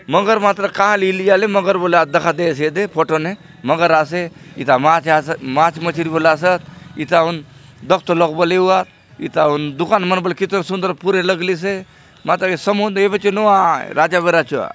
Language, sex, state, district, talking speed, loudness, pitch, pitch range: Halbi, male, Chhattisgarh, Bastar, 185 wpm, -16 LUFS, 175 Hz, 160-195 Hz